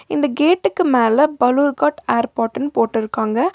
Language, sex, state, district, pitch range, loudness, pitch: Tamil, female, Tamil Nadu, Nilgiris, 230-300 Hz, -17 LUFS, 275 Hz